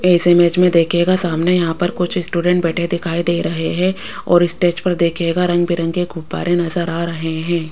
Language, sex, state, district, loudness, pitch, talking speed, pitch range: Hindi, female, Rajasthan, Jaipur, -17 LUFS, 175 Hz, 195 wpm, 170-175 Hz